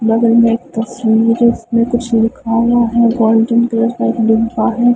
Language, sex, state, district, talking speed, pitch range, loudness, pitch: Hindi, female, Punjab, Fazilka, 170 wpm, 225-235 Hz, -13 LUFS, 230 Hz